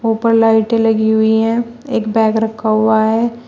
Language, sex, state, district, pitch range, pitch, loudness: Hindi, female, Uttar Pradesh, Shamli, 220-230 Hz, 225 Hz, -14 LUFS